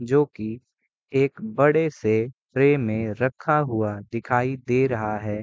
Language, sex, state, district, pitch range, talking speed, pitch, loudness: Hindi, male, Bihar, Gopalganj, 110-140 Hz, 145 wpm, 125 Hz, -23 LUFS